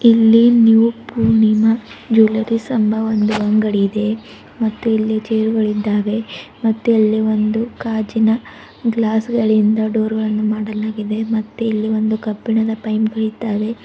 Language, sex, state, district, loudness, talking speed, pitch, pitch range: Kannada, female, Karnataka, Bidar, -16 LUFS, 115 wpm, 220 Hz, 215-225 Hz